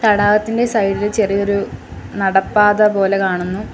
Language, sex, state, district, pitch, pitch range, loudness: Malayalam, female, Kerala, Kollam, 205 Hz, 195-210 Hz, -15 LUFS